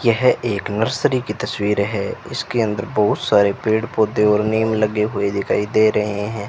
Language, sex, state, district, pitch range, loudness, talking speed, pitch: Hindi, male, Rajasthan, Bikaner, 105-110 Hz, -19 LUFS, 185 wpm, 105 Hz